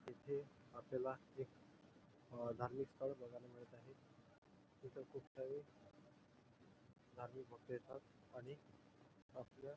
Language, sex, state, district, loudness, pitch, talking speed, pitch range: Marathi, male, Maharashtra, Nagpur, -52 LUFS, 125 Hz, 100 wpm, 120-135 Hz